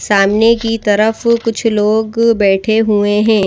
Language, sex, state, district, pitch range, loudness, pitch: Hindi, female, Madhya Pradesh, Bhopal, 205-225 Hz, -12 LUFS, 220 Hz